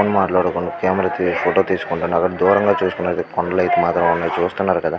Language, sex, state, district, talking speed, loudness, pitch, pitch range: Telugu, male, Andhra Pradesh, Guntur, 145 wpm, -18 LUFS, 95 Hz, 90-100 Hz